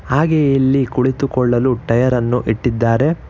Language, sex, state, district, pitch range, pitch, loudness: Kannada, male, Karnataka, Bangalore, 120-135 Hz, 130 Hz, -16 LUFS